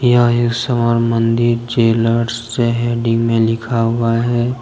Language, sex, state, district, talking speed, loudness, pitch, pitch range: Hindi, male, Jharkhand, Deoghar, 155 wpm, -15 LUFS, 115 Hz, 115-120 Hz